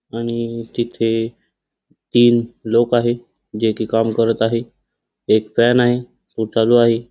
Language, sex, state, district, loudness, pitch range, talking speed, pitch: Marathi, male, Maharashtra, Aurangabad, -18 LUFS, 115-120 Hz, 135 wpm, 115 Hz